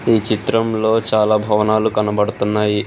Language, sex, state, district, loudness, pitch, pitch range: Telugu, male, Telangana, Hyderabad, -16 LUFS, 110 Hz, 105-110 Hz